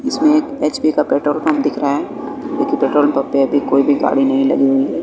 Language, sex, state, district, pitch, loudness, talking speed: Hindi, male, Bihar, West Champaran, 275 Hz, -16 LUFS, 250 wpm